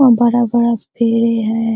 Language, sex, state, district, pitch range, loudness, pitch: Hindi, female, Bihar, Araria, 225-235 Hz, -15 LUFS, 235 Hz